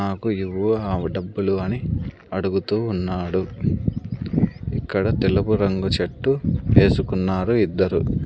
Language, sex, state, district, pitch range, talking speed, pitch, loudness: Telugu, male, Andhra Pradesh, Sri Satya Sai, 95-105 Hz, 95 wpm, 95 Hz, -22 LUFS